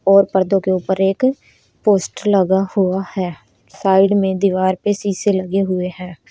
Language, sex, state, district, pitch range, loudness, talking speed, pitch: Hindi, female, Haryana, Rohtak, 185-195 Hz, -17 LUFS, 160 wpm, 190 Hz